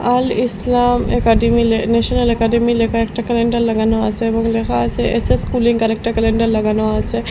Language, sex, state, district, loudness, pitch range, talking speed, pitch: Bengali, female, Assam, Hailakandi, -16 LUFS, 225-235 Hz, 165 wpm, 230 Hz